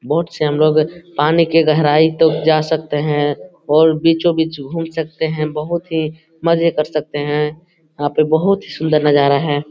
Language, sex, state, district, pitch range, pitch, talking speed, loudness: Hindi, male, Bihar, Lakhisarai, 150-165 Hz, 155 Hz, 190 wpm, -16 LUFS